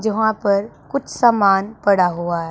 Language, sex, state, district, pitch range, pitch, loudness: Hindi, female, Punjab, Pathankot, 195-220 Hz, 200 Hz, -18 LUFS